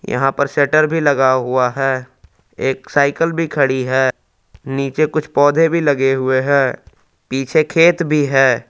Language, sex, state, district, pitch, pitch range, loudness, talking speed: Hindi, male, Jharkhand, Palamu, 140 Hz, 130-155 Hz, -15 LUFS, 160 wpm